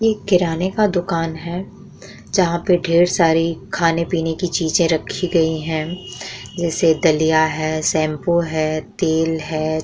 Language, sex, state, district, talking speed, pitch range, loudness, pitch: Hindi, female, Bihar, Vaishali, 135 wpm, 160-175 Hz, -18 LUFS, 165 Hz